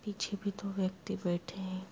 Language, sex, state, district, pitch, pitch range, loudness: Hindi, female, Bihar, Muzaffarpur, 190 Hz, 185-205 Hz, -37 LUFS